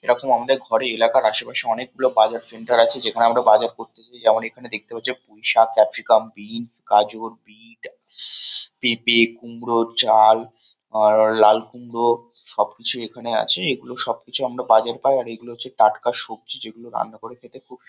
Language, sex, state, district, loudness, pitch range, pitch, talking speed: Bengali, male, West Bengal, Kolkata, -18 LUFS, 110-120 Hz, 115 Hz, 170 wpm